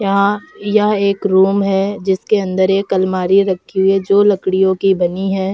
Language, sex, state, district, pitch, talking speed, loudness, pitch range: Hindi, female, Uttar Pradesh, Jalaun, 195 Hz, 185 wpm, -15 LUFS, 190-200 Hz